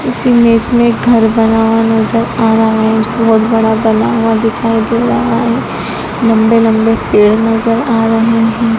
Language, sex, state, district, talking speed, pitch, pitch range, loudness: Hindi, female, Madhya Pradesh, Dhar, 170 wpm, 225 Hz, 225-230 Hz, -11 LUFS